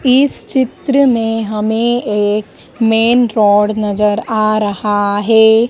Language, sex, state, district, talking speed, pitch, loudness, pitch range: Hindi, female, Madhya Pradesh, Dhar, 115 wpm, 220 Hz, -13 LUFS, 210-240 Hz